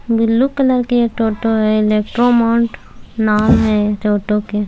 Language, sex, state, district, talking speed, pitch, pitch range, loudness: Maithili, female, Bihar, Samastipur, 155 wpm, 225 Hz, 210-235 Hz, -15 LUFS